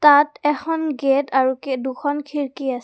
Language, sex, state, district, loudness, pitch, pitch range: Assamese, female, Assam, Kamrup Metropolitan, -20 LUFS, 280 Hz, 265-295 Hz